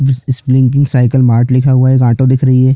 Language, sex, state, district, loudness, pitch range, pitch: Hindi, male, Chhattisgarh, Jashpur, -10 LUFS, 125-130 Hz, 130 Hz